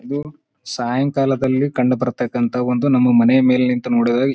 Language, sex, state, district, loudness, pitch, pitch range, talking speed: Kannada, male, Karnataka, Bijapur, -17 LUFS, 125 Hz, 125-135 Hz, 140 wpm